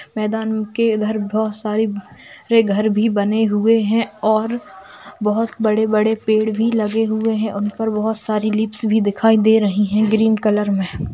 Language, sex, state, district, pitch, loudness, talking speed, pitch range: Hindi, female, Bihar, Bhagalpur, 215 Hz, -18 LUFS, 170 wpm, 210-220 Hz